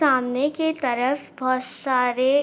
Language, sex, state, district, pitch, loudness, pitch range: Hindi, female, Jharkhand, Sahebganj, 260 Hz, -23 LUFS, 255-285 Hz